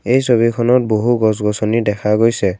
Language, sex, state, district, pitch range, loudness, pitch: Assamese, male, Assam, Kamrup Metropolitan, 105-120 Hz, -15 LUFS, 115 Hz